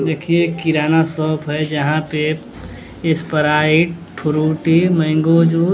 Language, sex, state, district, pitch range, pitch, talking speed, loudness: Hindi, male, Bihar, West Champaran, 150-165 Hz, 155 Hz, 125 wpm, -16 LUFS